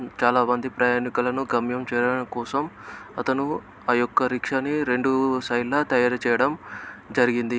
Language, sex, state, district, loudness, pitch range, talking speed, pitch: Telugu, male, Telangana, Nalgonda, -23 LUFS, 120-130 Hz, 120 wpm, 125 Hz